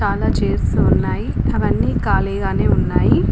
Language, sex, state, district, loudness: Telugu, female, Telangana, Komaram Bheem, -18 LUFS